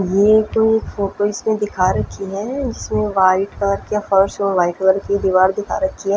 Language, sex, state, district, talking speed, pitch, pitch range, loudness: Hindi, female, Punjab, Fazilka, 195 wpm, 200 Hz, 190-210 Hz, -17 LUFS